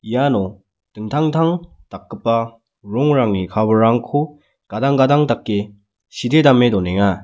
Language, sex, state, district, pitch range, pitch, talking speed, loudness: Garo, male, Meghalaya, West Garo Hills, 100-140 Hz, 115 Hz, 90 wpm, -17 LUFS